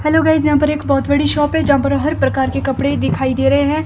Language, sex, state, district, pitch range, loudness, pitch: Hindi, female, Himachal Pradesh, Shimla, 285-305 Hz, -15 LUFS, 295 Hz